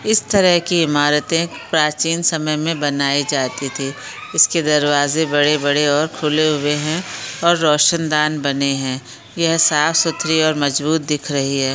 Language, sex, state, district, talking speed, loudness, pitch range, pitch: Hindi, female, Bihar, Darbhanga, 155 wpm, -17 LUFS, 145-165 Hz, 150 Hz